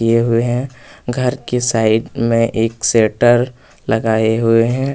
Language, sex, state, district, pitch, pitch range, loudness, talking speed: Hindi, male, Chhattisgarh, Kabirdham, 115 Hz, 115-125 Hz, -15 LUFS, 145 wpm